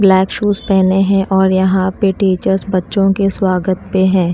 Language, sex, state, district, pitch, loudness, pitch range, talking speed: Hindi, female, Chhattisgarh, Raipur, 190 Hz, -14 LUFS, 190-195 Hz, 180 wpm